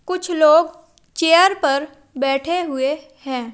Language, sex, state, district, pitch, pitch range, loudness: Hindi, female, Madhya Pradesh, Umaria, 305 Hz, 275-335 Hz, -17 LUFS